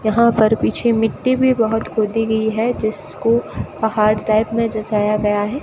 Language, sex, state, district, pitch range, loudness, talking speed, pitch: Hindi, female, Rajasthan, Bikaner, 215-230 Hz, -17 LUFS, 170 wpm, 220 Hz